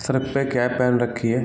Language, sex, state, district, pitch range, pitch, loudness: Hindi, male, Chhattisgarh, Bilaspur, 120-130 Hz, 125 Hz, -22 LUFS